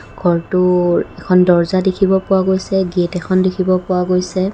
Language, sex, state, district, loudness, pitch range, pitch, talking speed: Assamese, female, Assam, Kamrup Metropolitan, -15 LUFS, 180-190 Hz, 185 Hz, 145 wpm